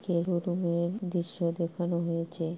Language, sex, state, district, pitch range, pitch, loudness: Bengali, male, West Bengal, Purulia, 170-175 Hz, 170 Hz, -31 LUFS